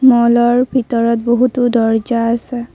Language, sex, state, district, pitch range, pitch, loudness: Assamese, female, Assam, Kamrup Metropolitan, 235-250 Hz, 240 Hz, -14 LUFS